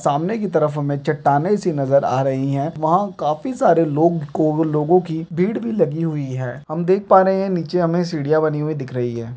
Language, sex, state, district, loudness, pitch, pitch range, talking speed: Hindi, male, Bihar, Begusarai, -19 LUFS, 160 Hz, 145-180 Hz, 220 wpm